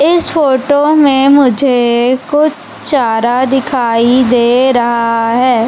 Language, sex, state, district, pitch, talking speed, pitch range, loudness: Hindi, female, Madhya Pradesh, Umaria, 255 Hz, 105 wpm, 240-285 Hz, -10 LUFS